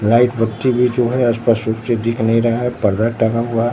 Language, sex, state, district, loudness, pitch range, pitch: Hindi, male, Bihar, Katihar, -16 LUFS, 115-120 Hz, 115 Hz